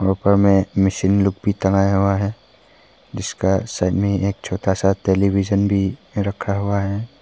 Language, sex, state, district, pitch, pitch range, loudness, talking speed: Hindi, male, Arunachal Pradesh, Papum Pare, 100 Hz, 95-100 Hz, -19 LUFS, 160 wpm